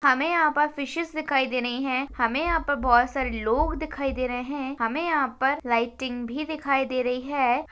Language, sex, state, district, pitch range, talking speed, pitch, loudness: Hindi, female, Maharashtra, Aurangabad, 250-300 Hz, 210 wpm, 270 Hz, -25 LUFS